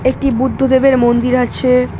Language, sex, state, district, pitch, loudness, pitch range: Bengali, female, West Bengal, North 24 Parganas, 255 Hz, -13 LUFS, 250-265 Hz